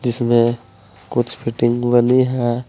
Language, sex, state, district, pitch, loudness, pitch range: Hindi, male, Uttar Pradesh, Saharanpur, 120 Hz, -17 LUFS, 115-120 Hz